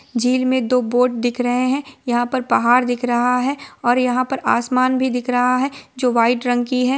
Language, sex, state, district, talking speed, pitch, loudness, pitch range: Hindi, female, Bihar, Supaul, 225 wpm, 250 Hz, -18 LUFS, 245-255 Hz